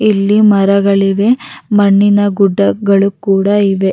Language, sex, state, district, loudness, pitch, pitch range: Kannada, female, Karnataka, Raichur, -11 LUFS, 200 Hz, 195-205 Hz